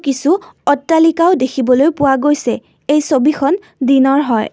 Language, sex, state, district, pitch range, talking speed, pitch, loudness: Assamese, female, Assam, Kamrup Metropolitan, 265-315 Hz, 120 wpm, 285 Hz, -14 LUFS